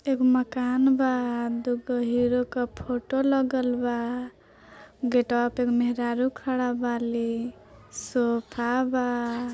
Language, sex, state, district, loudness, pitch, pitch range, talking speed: Bhojpuri, female, Bihar, Gopalganj, -26 LUFS, 245 Hz, 240-255 Hz, 95 wpm